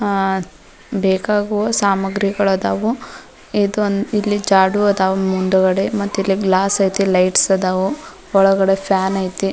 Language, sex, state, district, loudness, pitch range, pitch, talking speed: Kannada, female, Karnataka, Dharwad, -17 LUFS, 190-205 Hz, 195 Hz, 100 wpm